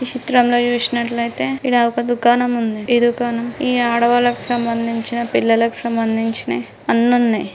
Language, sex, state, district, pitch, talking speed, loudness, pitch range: Telugu, female, Andhra Pradesh, Guntur, 235 Hz, 125 wpm, -17 LUFS, 230-245 Hz